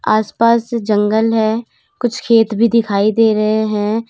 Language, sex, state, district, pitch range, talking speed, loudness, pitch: Hindi, female, Uttar Pradesh, Lalitpur, 215-230 Hz, 160 wpm, -15 LUFS, 225 Hz